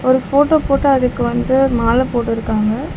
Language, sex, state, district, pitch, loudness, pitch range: Tamil, female, Tamil Nadu, Chennai, 250 Hz, -15 LUFS, 235-270 Hz